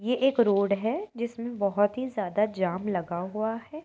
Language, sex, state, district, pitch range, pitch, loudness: Hindi, female, Uttar Pradesh, Etah, 200-240 Hz, 215 Hz, -28 LUFS